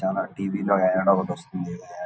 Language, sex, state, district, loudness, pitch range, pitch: Telugu, male, Andhra Pradesh, Visakhapatnam, -24 LUFS, 90-95 Hz, 95 Hz